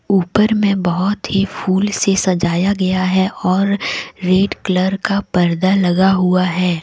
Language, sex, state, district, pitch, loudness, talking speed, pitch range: Hindi, female, Jharkhand, Deoghar, 190 Hz, -16 LUFS, 150 wpm, 185-195 Hz